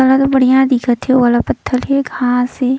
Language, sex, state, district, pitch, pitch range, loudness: Surgujia, female, Chhattisgarh, Sarguja, 255 Hz, 245-265 Hz, -13 LUFS